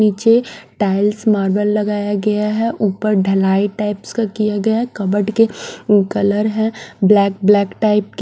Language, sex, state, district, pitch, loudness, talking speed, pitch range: Hindi, female, Bihar, Patna, 210 Hz, -16 LUFS, 155 wpm, 200-215 Hz